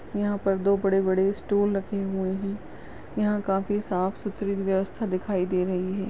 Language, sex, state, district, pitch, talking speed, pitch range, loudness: Hindi, female, Maharashtra, Nagpur, 195 Hz, 175 wpm, 190-205 Hz, -26 LUFS